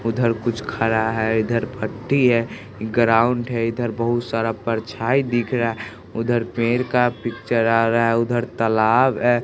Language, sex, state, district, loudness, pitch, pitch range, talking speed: Hindi, male, Bihar, West Champaran, -20 LUFS, 115 Hz, 115-120 Hz, 155 wpm